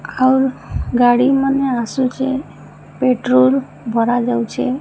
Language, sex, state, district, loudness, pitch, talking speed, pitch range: Odia, female, Odisha, Sambalpur, -16 LUFS, 255 Hz, 85 wpm, 245-265 Hz